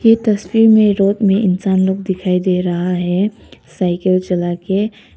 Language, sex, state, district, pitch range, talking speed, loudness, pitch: Hindi, female, Arunachal Pradesh, Papum Pare, 180-205 Hz, 160 wpm, -15 LUFS, 190 Hz